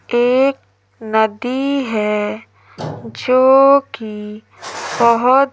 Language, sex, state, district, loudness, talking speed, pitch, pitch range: Hindi, female, Madhya Pradesh, Umaria, -15 LUFS, 55 wpm, 240 Hz, 220-270 Hz